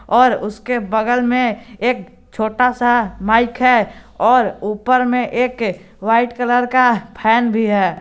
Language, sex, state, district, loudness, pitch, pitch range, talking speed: Hindi, male, Jharkhand, Garhwa, -16 LUFS, 235 Hz, 220-245 Hz, 140 wpm